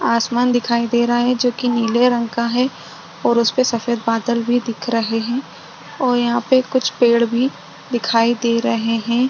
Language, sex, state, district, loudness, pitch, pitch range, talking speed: Hindi, female, Maharashtra, Chandrapur, -18 LUFS, 235 Hz, 235-245 Hz, 185 wpm